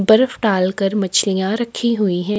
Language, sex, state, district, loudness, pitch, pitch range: Hindi, female, Chhattisgarh, Kabirdham, -17 LUFS, 205 Hz, 190-220 Hz